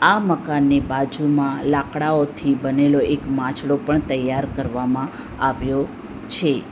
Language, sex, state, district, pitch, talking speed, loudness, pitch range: Gujarati, female, Gujarat, Valsad, 140 Hz, 105 wpm, -20 LUFS, 135-145 Hz